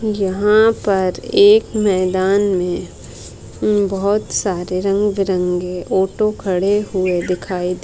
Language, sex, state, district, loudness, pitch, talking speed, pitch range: Hindi, female, Bihar, Madhepura, -17 LUFS, 190 Hz, 115 wpm, 180-205 Hz